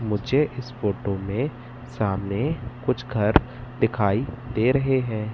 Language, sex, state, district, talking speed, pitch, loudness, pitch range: Hindi, male, Madhya Pradesh, Katni, 125 wpm, 120 Hz, -24 LUFS, 105-130 Hz